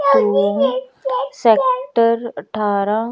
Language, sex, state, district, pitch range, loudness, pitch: Hindi, female, Chandigarh, Chandigarh, 215-275 Hz, -17 LUFS, 245 Hz